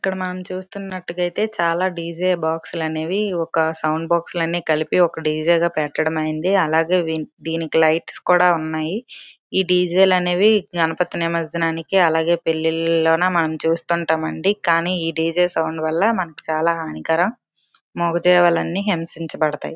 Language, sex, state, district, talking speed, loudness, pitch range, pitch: Telugu, female, Andhra Pradesh, Srikakulam, 135 wpm, -19 LUFS, 160-180 Hz, 170 Hz